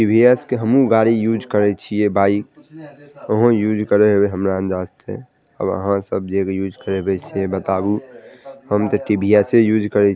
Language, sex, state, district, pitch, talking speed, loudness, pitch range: Maithili, male, Bihar, Madhepura, 105 Hz, 185 wpm, -17 LUFS, 100-120 Hz